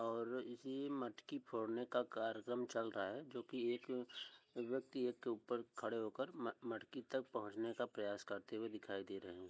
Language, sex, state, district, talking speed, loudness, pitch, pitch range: Hindi, male, Uttar Pradesh, Hamirpur, 185 wpm, -46 LUFS, 115 Hz, 110-125 Hz